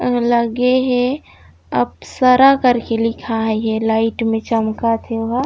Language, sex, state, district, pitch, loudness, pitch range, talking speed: Chhattisgarhi, female, Chhattisgarh, Raigarh, 230 Hz, -16 LUFS, 225-250 Hz, 140 wpm